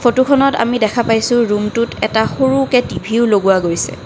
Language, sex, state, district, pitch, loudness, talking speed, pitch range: Assamese, female, Assam, Kamrup Metropolitan, 230 Hz, -14 LUFS, 190 wpm, 210-245 Hz